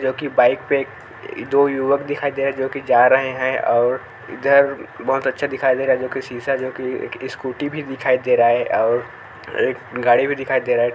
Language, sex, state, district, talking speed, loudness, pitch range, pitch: Hindi, male, Chhattisgarh, Korba, 235 wpm, -19 LUFS, 125-140 Hz, 130 Hz